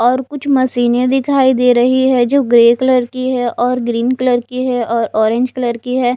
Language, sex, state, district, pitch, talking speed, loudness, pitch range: Hindi, female, Odisha, Nuapada, 250 Hz, 215 wpm, -14 LUFS, 240-260 Hz